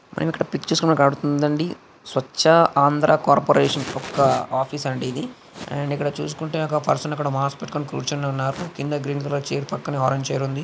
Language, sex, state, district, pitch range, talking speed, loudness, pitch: Telugu, male, Andhra Pradesh, Krishna, 140-155 Hz, 190 wpm, -22 LUFS, 145 Hz